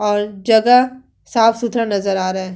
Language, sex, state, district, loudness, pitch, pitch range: Hindi, female, Uttar Pradesh, Hamirpur, -16 LUFS, 220 Hz, 200-235 Hz